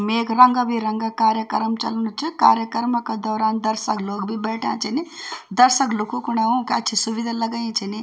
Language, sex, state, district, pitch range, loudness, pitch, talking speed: Garhwali, female, Uttarakhand, Tehri Garhwal, 220-235 Hz, -20 LUFS, 225 Hz, 165 wpm